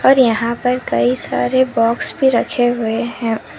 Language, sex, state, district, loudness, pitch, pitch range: Hindi, female, Karnataka, Koppal, -16 LUFS, 235 Hz, 225-250 Hz